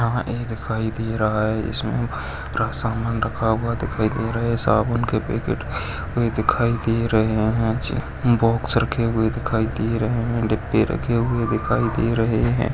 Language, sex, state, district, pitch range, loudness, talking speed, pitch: Hindi, male, Maharashtra, Dhule, 110-115 Hz, -22 LUFS, 185 wpm, 115 Hz